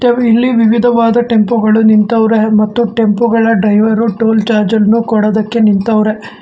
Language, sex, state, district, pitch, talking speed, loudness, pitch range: Kannada, male, Karnataka, Bangalore, 225 Hz, 130 wpm, -10 LUFS, 215-230 Hz